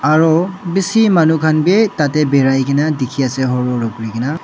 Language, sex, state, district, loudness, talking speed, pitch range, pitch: Nagamese, male, Nagaland, Dimapur, -14 LUFS, 135 wpm, 135-170 Hz, 150 Hz